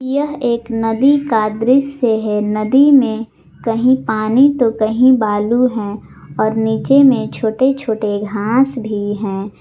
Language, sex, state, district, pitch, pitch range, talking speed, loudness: Hindi, female, Jharkhand, Garhwa, 225 Hz, 215-260 Hz, 135 wpm, -15 LUFS